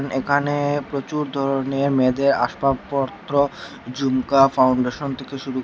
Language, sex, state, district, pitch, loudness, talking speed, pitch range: Bengali, male, Tripura, Unakoti, 135 Hz, -21 LUFS, 105 wpm, 130-140 Hz